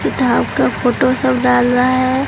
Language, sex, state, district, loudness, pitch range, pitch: Hindi, female, Bihar, Katihar, -14 LUFS, 245-255 Hz, 255 Hz